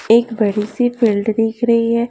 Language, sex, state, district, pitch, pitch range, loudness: Hindi, female, Haryana, Jhajjar, 230 Hz, 220-235 Hz, -16 LUFS